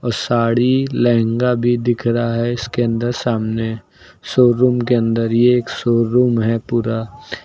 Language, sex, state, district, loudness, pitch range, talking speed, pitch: Hindi, male, Uttar Pradesh, Lucknow, -17 LUFS, 115-120 Hz, 155 wpm, 120 Hz